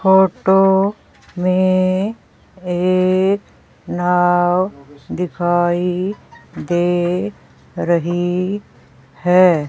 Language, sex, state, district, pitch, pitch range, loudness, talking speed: Hindi, female, Haryana, Rohtak, 180 Hz, 175-190 Hz, -17 LUFS, 50 wpm